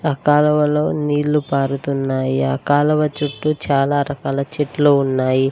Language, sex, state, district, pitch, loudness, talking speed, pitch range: Telugu, female, Telangana, Mahabubabad, 145 Hz, -18 LUFS, 120 wpm, 135-150 Hz